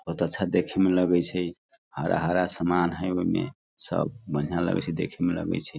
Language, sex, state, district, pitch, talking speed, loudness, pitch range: Hindi, male, Bihar, Sitamarhi, 90 Hz, 195 wpm, -26 LUFS, 85-90 Hz